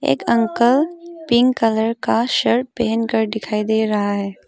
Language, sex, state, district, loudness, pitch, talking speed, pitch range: Hindi, female, Arunachal Pradesh, Longding, -18 LUFS, 230 Hz, 160 wpm, 220-245 Hz